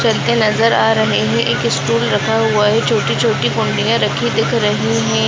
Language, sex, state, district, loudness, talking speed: Hindi, female, Uttar Pradesh, Deoria, -14 LUFS, 180 wpm